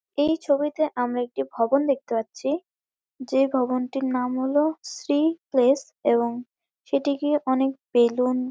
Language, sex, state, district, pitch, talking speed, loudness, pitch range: Bengali, female, West Bengal, North 24 Parganas, 265 Hz, 125 wpm, -24 LUFS, 250-290 Hz